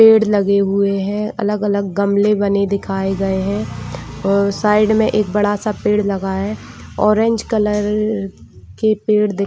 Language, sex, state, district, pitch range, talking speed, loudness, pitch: Hindi, female, Chhattisgarh, Bilaspur, 195-210 Hz, 160 wpm, -17 LUFS, 205 Hz